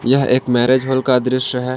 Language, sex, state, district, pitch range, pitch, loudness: Hindi, male, Jharkhand, Palamu, 125-130 Hz, 130 Hz, -16 LUFS